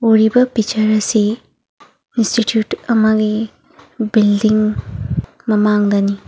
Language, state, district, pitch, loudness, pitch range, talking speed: Manipuri, Manipur, Imphal West, 215 Hz, -15 LUFS, 210-225 Hz, 65 wpm